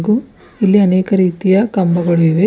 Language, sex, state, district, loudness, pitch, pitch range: Kannada, female, Karnataka, Bidar, -14 LUFS, 190 Hz, 175-205 Hz